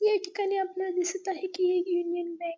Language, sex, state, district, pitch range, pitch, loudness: Marathi, female, Maharashtra, Dhule, 355-385 Hz, 370 Hz, -29 LUFS